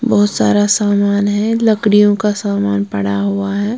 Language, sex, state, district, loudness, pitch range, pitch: Hindi, female, Punjab, Kapurthala, -14 LUFS, 200-210 Hz, 205 Hz